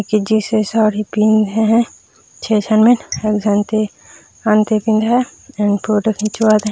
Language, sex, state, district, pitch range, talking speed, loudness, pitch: Chhattisgarhi, female, Chhattisgarh, Raigarh, 210-220 Hz, 145 wpm, -15 LUFS, 215 Hz